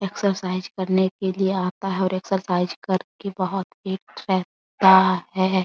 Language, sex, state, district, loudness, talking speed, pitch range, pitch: Hindi, female, Bihar, Araria, -22 LUFS, 140 wpm, 185-195 Hz, 190 Hz